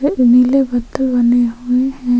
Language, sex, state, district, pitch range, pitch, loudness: Hindi, female, Chhattisgarh, Sukma, 245-265 Hz, 250 Hz, -14 LUFS